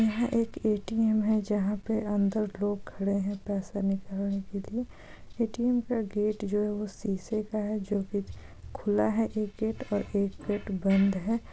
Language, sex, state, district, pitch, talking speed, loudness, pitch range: Hindi, female, Bihar, Jahanabad, 205 Hz, 170 wpm, -30 LUFS, 200-220 Hz